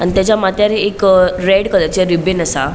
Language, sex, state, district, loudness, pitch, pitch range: Konkani, female, Goa, North and South Goa, -13 LUFS, 190 Hz, 180-205 Hz